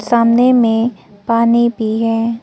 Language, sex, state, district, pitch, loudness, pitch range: Hindi, female, Arunachal Pradesh, Papum Pare, 230 Hz, -13 LUFS, 225-235 Hz